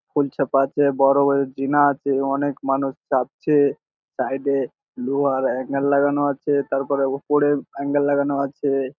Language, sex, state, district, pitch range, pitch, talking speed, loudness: Bengali, male, West Bengal, Jhargram, 135-145 Hz, 140 Hz, 145 wpm, -21 LUFS